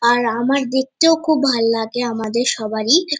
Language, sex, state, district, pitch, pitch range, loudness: Bengali, female, West Bengal, Kolkata, 245 Hz, 230-280 Hz, -17 LUFS